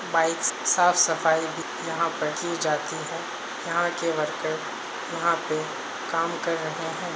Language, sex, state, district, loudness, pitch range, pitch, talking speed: Hindi, male, Bihar, Saharsa, -26 LUFS, 160-170 Hz, 165 Hz, 140 wpm